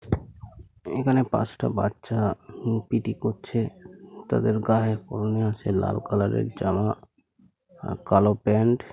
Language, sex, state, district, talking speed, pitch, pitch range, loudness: Bengali, male, West Bengal, North 24 Parganas, 135 wpm, 110 Hz, 105-115 Hz, -25 LUFS